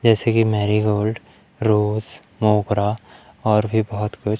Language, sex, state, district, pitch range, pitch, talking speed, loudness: Hindi, male, Madhya Pradesh, Umaria, 105-110 Hz, 105 Hz, 125 wpm, -20 LUFS